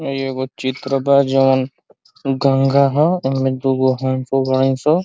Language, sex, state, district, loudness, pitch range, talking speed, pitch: Bhojpuri, male, Uttar Pradesh, Ghazipur, -17 LUFS, 130-140 Hz, 140 wpm, 135 Hz